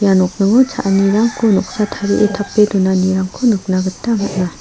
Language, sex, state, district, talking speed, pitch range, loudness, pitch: Garo, female, Meghalaya, South Garo Hills, 130 wpm, 190-210 Hz, -15 LUFS, 200 Hz